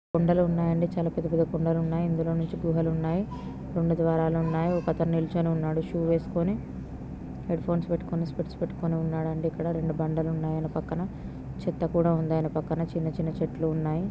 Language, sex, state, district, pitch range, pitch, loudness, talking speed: Telugu, female, Andhra Pradesh, Srikakulam, 160-170 Hz, 165 Hz, -28 LUFS, 150 wpm